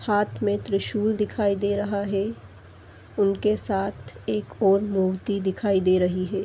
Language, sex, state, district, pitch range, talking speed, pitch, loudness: Hindi, female, Chhattisgarh, Sarguja, 185-205 Hz, 140 wpm, 195 Hz, -24 LUFS